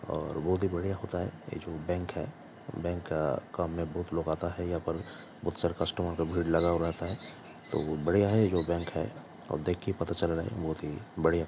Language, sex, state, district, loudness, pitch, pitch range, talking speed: Hindi, male, Uttar Pradesh, Jalaun, -32 LUFS, 85 Hz, 80-90 Hz, 245 wpm